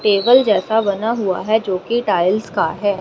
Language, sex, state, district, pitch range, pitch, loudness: Hindi, female, Haryana, Rohtak, 195-225 Hz, 210 Hz, -17 LUFS